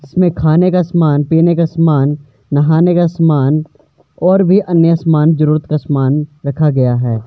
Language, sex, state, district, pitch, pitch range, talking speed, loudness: Hindi, male, Himachal Pradesh, Shimla, 155 Hz, 145-170 Hz, 165 wpm, -12 LUFS